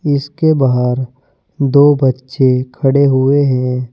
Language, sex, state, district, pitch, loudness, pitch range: Hindi, male, Uttar Pradesh, Saharanpur, 135 Hz, -13 LUFS, 130-140 Hz